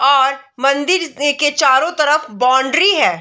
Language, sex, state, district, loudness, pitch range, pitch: Hindi, female, Bihar, Darbhanga, -14 LUFS, 270-300 Hz, 280 Hz